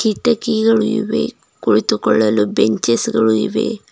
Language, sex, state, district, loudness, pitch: Kannada, female, Karnataka, Bidar, -16 LUFS, 210 Hz